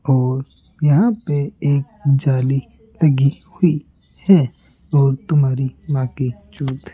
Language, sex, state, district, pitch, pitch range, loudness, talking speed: Hindi, male, Rajasthan, Jaipur, 140 Hz, 135-155 Hz, -18 LUFS, 95 wpm